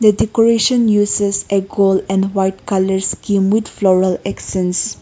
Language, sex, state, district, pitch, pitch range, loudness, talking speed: English, female, Nagaland, Kohima, 195 Hz, 190-210 Hz, -15 LUFS, 110 wpm